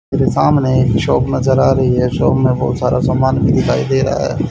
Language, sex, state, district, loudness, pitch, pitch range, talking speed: Hindi, male, Haryana, Charkhi Dadri, -14 LUFS, 130 Hz, 125-130 Hz, 225 wpm